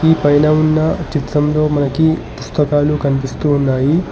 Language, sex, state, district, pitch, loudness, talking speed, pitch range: Telugu, male, Telangana, Hyderabad, 150 Hz, -15 LUFS, 115 wpm, 145-155 Hz